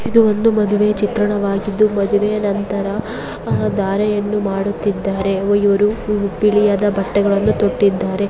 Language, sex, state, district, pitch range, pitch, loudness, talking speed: Kannada, female, Karnataka, Bellary, 200-210 Hz, 205 Hz, -17 LUFS, 85 wpm